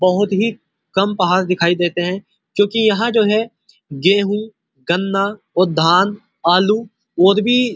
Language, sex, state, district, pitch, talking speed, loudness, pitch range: Hindi, male, Uttar Pradesh, Muzaffarnagar, 200 Hz, 155 wpm, -16 LUFS, 180-215 Hz